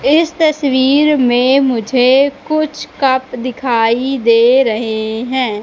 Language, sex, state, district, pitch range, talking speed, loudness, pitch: Hindi, female, Madhya Pradesh, Katni, 240-280 Hz, 105 wpm, -13 LUFS, 260 Hz